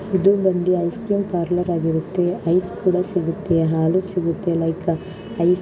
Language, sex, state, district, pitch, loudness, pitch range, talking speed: Kannada, female, Karnataka, Shimoga, 180 Hz, -20 LUFS, 170-185 Hz, 160 wpm